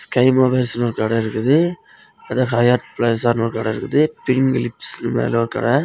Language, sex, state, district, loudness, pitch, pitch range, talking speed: Tamil, male, Tamil Nadu, Kanyakumari, -18 LUFS, 125 Hz, 115-130 Hz, 165 wpm